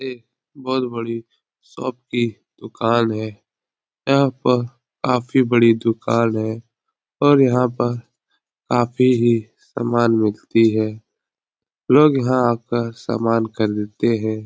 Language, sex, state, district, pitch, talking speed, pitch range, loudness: Hindi, male, Uttar Pradesh, Etah, 120 Hz, 110 wpm, 115-125 Hz, -19 LUFS